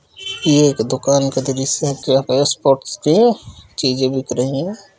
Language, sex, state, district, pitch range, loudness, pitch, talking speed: Kumaoni, male, Uttarakhand, Uttarkashi, 130-150 Hz, -16 LUFS, 135 Hz, 170 wpm